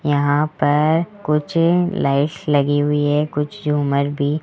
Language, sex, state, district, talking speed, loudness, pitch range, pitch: Hindi, female, Rajasthan, Jaipur, 135 wpm, -18 LUFS, 145-155 Hz, 150 Hz